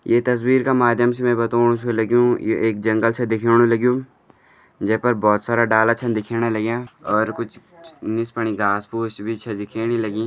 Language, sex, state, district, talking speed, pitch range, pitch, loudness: Garhwali, male, Uttarakhand, Uttarkashi, 195 wpm, 110-120 Hz, 115 Hz, -19 LUFS